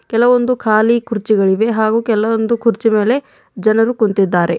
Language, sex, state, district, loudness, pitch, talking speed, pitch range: Kannada, female, Karnataka, Bidar, -14 LUFS, 225 Hz, 120 wpm, 215-235 Hz